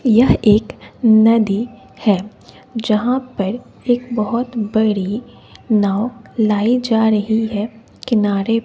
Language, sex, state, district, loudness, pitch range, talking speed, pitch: Hindi, female, Bihar, West Champaran, -17 LUFS, 210-240 Hz, 105 wpm, 220 Hz